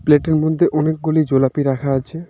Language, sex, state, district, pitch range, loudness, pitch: Bengali, male, West Bengal, Darjeeling, 135-160 Hz, -17 LUFS, 155 Hz